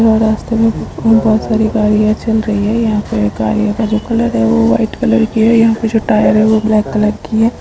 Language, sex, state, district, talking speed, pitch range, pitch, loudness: Bhojpuri, female, Uttar Pradesh, Gorakhpur, 260 wpm, 210-225 Hz, 220 Hz, -13 LUFS